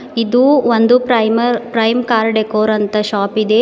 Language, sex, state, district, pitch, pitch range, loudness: Kannada, female, Karnataka, Bidar, 225 Hz, 215-240 Hz, -13 LUFS